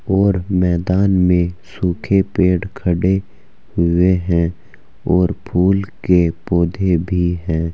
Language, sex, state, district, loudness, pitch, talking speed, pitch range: Hindi, male, Uttar Pradesh, Saharanpur, -17 LUFS, 90 Hz, 110 wpm, 85-95 Hz